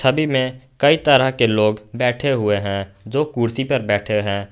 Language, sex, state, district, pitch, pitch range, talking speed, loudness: Hindi, male, Jharkhand, Garhwa, 125 Hz, 105-135 Hz, 185 wpm, -19 LUFS